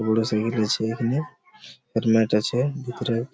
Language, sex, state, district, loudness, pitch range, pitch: Bengali, male, West Bengal, Malda, -24 LUFS, 110-125 Hz, 115 Hz